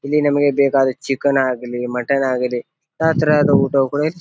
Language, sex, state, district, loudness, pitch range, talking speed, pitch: Kannada, male, Karnataka, Bijapur, -17 LUFS, 130-150 Hz, 140 wpm, 140 Hz